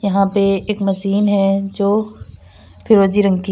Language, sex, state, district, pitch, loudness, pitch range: Hindi, female, Uttar Pradesh, Lalitpur, 195 Hz, -16 LUFS, 190-205 Hz